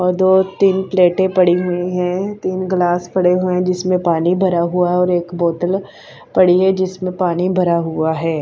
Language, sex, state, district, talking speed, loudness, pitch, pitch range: Hindi, female, Haryana, Charkhi Dadri, 190 wpm, -16 LUFS, 180 Hz, 175-185 Hz